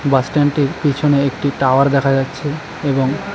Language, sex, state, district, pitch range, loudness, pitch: Bengali, male, West Bengal, Cooch Behar, 135-145 Hz, -16 LUFS, 140 Hz